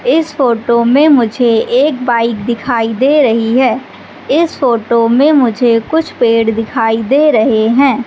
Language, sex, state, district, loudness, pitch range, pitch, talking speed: Hindi, female, Madhya Pradesh, Katni, -11 LUFS, 230-280 Hz, 240 Hz, 150 wpm